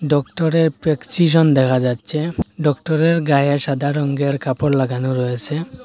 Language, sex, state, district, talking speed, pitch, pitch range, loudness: Bengali, male, Assam, Hailakandi, 125 wpm, 145 Hz, 135-160 Hz, -18 LUFS